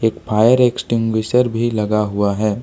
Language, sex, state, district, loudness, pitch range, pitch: Hindi, male, Jharkhand, Ranchi, -16 LUFS, 105-120 Hz, 110 Hz